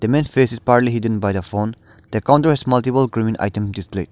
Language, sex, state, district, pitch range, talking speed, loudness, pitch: English, male, Nagaland, Dimapur, 105-130 Hz, 220 wpm, -18 LUFS, 115 Hz